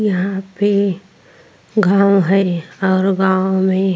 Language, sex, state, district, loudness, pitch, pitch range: Hindi, female, Chhattisgarh, Korba, -16 LUFS, 190 Hz, 190-195 Hz